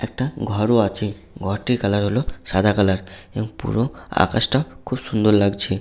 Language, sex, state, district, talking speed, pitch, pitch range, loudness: Bengali, male, West Bengal, Jhargram, 145 wpm, 105 Hz, 100-115 Hz, -21 LUFS